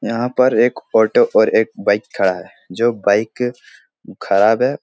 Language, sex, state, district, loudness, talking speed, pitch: Hindi, male, Bihar, Jahanabad, -16 LUFS, 175 wpm, 125 Hz